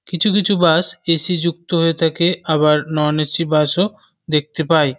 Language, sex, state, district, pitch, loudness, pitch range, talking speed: Bengali, male, West Bengal, North 24 Parganas, 165 Hz, -17 LUFS, 155-175 Hz, 170 wpm